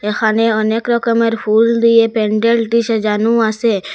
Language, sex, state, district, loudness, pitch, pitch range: Bengali, female, Assam, Hailakandi, -14 LUFS, 225 Hz, 215-230 Hz